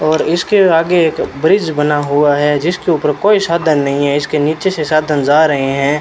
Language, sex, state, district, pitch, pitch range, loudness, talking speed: Hindi, male, Rajasthan, Bikaner, 155 Hz, 145-170 Hz, -13 LUFS, 210 wpm